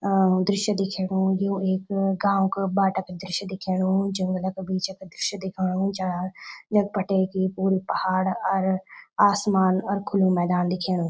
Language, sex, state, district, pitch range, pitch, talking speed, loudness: Garhwali, female, Uttarakhand, Tehri Garhwal, 185-195 Hz, 190 Hz, 155 wpm, -24 LUFS